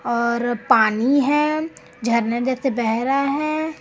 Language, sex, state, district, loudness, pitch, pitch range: Hindi, female, Chhattisgarh, Raipur, -20 LUFS, 255 Hz, 235-285 Hz